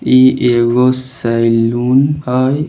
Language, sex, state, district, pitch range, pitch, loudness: Maithili, male, Bihar, Samastipur, 120-130 Hz, 125 Hz, -12 LUFS